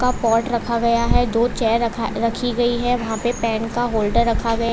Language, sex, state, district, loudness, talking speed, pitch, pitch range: Hindi, female, Gujarat, Valsad, -20 LUFS, 205 wpm, 235 Hz, 230-240 Hz